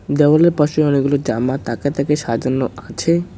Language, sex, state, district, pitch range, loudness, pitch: Bengali, male, West Bengal, Cooch Behar, 125-150 Hz, -17 LUFS, 140 Hz